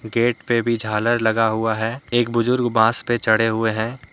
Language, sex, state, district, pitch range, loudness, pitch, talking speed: Hindi, male, Jharkhand, Deoghar, 110-120 Hz, -19 LUFS, 115 Hz, 205 wpm